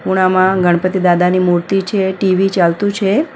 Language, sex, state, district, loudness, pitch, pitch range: Gujarati, female, Gujarat, Valsad, -14 LUFS, 185 Hz, 180-195 Hz